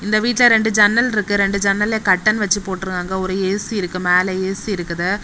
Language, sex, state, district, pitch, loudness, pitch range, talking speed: Tamil, female, Tamil Nadu, Kanyakumari, 200 Hz, -17 LUFS, 190-210 Hz, 185 wpm